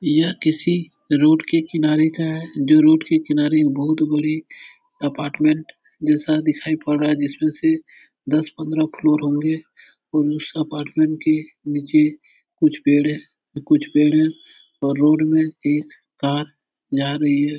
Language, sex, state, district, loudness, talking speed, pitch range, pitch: Hindi, male, Uttar Pradesh, Etah, -19 LUFS, 145 wpm, 150-160 Hz, 155 Hz